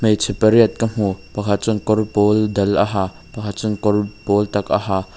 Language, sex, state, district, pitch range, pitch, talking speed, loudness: Mizo, male, Mizoram, Aizawl, 100-110 Hz, 105 Hz, 210 wpm, -18 LUFS